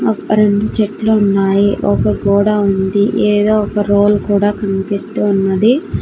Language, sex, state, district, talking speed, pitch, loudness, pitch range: Telugu, female, Andhra Pradesh, Sri Satya Sai, 130 wpm, 205 Hz, -13 LUFS, 200-210 Hz